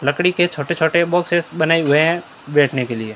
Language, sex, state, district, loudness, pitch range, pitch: Hindi, male, Rajasthan, Bikaner, -17 LUFS, 145-170 Hz, 160 Hz